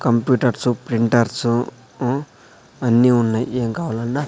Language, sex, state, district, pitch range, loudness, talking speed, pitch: Telugu, male, Andhra Pradesh, Sri Satya Sai, 115-125 Hz, -19 LUFS, 100 wpm, 120 Hz